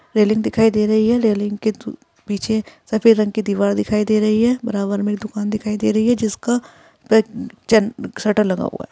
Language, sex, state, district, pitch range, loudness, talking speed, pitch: Hindi, female, Uttar Pradesh, Etah, 210-225 Hz, -18 LUFS, 210 wpm, 215 Hz